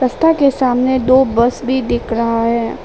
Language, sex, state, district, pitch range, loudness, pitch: Hindi, female, Arunachal Pradesh, Papum Pare, 235-260 Hz, -14 LUFS, 255 Hz